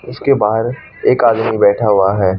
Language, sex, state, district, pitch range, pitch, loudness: Hindi, female, Haryana, Charkhi Dadri, 100-120 Hz, 110 Hz, -14 LUFS